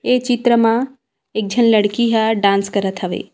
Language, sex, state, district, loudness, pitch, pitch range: Chhattisgarhi, female, Chhattisgarh, Rajnandgaon, -16 LUFS, 225 Hz, 200-240 Hz